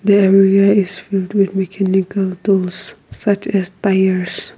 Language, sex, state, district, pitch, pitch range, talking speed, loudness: English, female, Nagaland, Kohima, 195 Hz, 190-200 Hz, 130 wpm, -15 LUFS